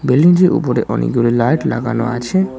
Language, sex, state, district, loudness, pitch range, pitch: Bengali, male, West Bengal, Cooch Behar, -15 LUFS, 120-160 Hz, 130 Hz